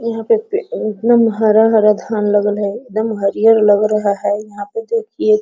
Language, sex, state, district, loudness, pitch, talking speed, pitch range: Hindi, female, Jharkhand, Sahebganj, -15 LUFS, 220 Hz, 200 wpm, 210-245 Hz